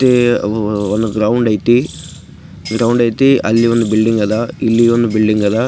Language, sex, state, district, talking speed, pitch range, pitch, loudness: Kannada, male, Karnataka, Gulbarga, 160 wpm, 110-120 Hz, 115 Hz, -13 LUFS